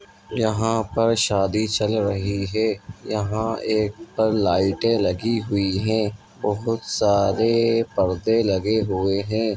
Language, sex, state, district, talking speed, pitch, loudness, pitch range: Hindi, male, Bihar, Bhagalpur, 120 wpm, 110 Hz, -22 LUFS, 100-110 Hz